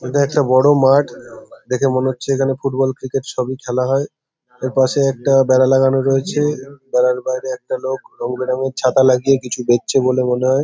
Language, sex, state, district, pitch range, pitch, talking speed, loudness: Bengali, male, West Bengal, Paschim Medinipur, 130-135 Hz, 130 Hz, 180 wpm, -16 LUFS